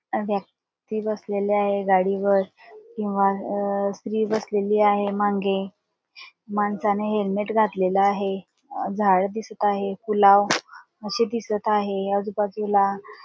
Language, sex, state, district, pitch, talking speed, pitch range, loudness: Marathi, male, Maharashtra, Dhule, 205 Hz, 90 wpm, 200-215 Hz, -23 LUFS